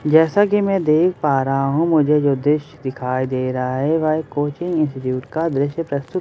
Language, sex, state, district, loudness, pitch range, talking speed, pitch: Hindi, male, Bihar, Katihar, -19 LUFS, 135-160 Hz, 240 wpm, 150 Hz